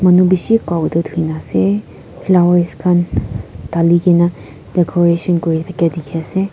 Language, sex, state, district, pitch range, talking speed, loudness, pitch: Nagamese, female, Nagaland, Kohima, 160-180 Hz, 110 wpm, -15 LUFS, 170 Hz